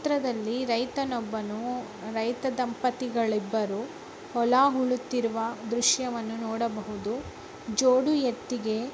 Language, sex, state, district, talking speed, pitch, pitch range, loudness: Kannada, female, Karnataka, Raichur, 65 wpm, 240 Hz, 225-255 Hz, -28 LUFS